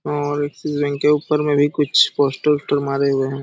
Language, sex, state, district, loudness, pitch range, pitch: Hindi, male, Jharkhand, Sahebganj, -18 LUFS, 140-150 Hz, 145 Hz